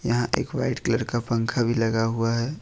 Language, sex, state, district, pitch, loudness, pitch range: Hindi, male, Jharkhand, Ranchi, 120 Hz, -25 LUFS, 115-120 Hz